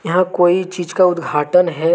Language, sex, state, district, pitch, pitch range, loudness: Hindi, male, Jharkhand, Deoghar, 175 Hz, 170-180 Hz, -15 LUFS